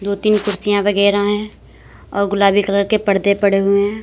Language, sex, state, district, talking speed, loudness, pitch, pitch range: Hindi, female, Uttar Pradesh, Lalitpur, 195 wpm, -16 LUFS, 200 Hz, 200-205 Hz